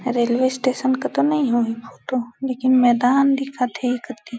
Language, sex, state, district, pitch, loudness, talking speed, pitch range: Hindi, female, Chhattisgarh, Balrampur, 255 Hz, -20 LUFS, 150 wpm, 245-270 Hz